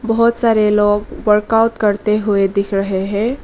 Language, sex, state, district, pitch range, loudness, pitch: Hindi, female, Arunachal Pradesh, Lower Dibang Valley, 200-225 Hz, -15 LUFS, 210 Hz